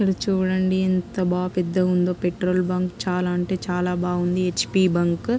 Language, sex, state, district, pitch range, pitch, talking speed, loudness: Telugu, female, Andhra Pradesh, Krishna, 180-185 Hz, 180 Hz, 180 wpm, -22 LUFS